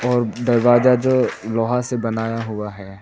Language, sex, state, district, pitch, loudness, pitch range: Hindi, male, Arunachal Pradesh, Papum Pare, 120 Hz, -19 LUFS, 110-125 Hz